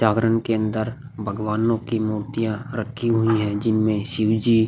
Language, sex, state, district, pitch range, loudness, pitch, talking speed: Hindi, male, Chhattisgarh, Korba, 110-115 Hz, -22 LUFS, 110 Hz, 155 wpm